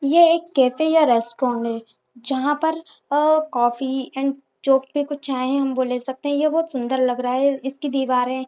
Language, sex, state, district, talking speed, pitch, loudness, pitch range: Hindi, female, Jharkhand, Jamtara, 190 wpm, 270 Hz, -21 LUFS, 255-290 Hz